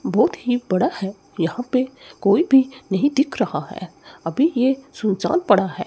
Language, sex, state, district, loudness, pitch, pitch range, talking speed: Hindi, male, Chandigarh, Chandigarh, -20 LUFS, 245 Hz, 195-270 Hz, 175 wpm